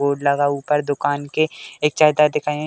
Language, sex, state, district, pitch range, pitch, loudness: Hindi, male, Uttar Pradesh, Deoria, 145-150 Hz, 150 Hz, -19 LUFS